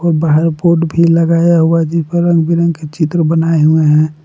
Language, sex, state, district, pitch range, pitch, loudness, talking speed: Hindi, male, Jharkhand, Palamu, 160-170 Hz, 165 Hz, -12 LUFS, 210 wpm